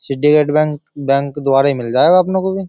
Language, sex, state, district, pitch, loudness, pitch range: Hindi, male, Uttar Pradesh, Jyotiba Phule Nagar, 145 Hz, -14 LUFS, 140-175 Hz